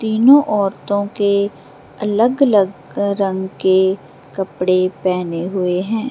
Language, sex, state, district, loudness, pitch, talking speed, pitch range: Hindi, female, Bihar, Samastipur, -17 LUFS, 195 Hz, 100 wpm, 185-210 Hz